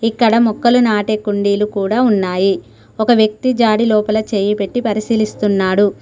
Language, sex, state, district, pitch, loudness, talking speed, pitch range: Telugu, female, Telangana, Mahabubabad, 215 Hz, -15 LUFS, 130 wpm, 200-225 Hz